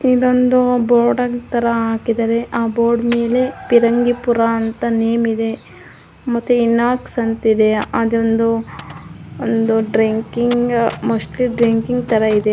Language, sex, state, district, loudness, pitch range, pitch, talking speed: Kannada, female, Karnataka, Mysore, -16 LUFS, 225-240 Hz, 235 Hz, 85 wpm